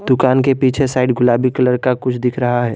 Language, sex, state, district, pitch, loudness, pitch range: Hindi, male, Jharkhand, Garhwa, 125 Hz, -15 LUFS, 125-130 Hz